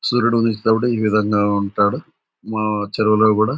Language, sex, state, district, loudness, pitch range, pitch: Telugu, male, Andhra Pradesh, Anantapur, -18 LUFS, 105-115 Hz, 110 Hz